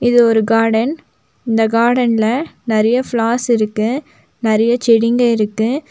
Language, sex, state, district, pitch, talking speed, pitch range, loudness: Tamil, female, Tamil Nadu, Nilgiris, 230 Hz, 110 wpm, 225-245 Hz, -15 LUFS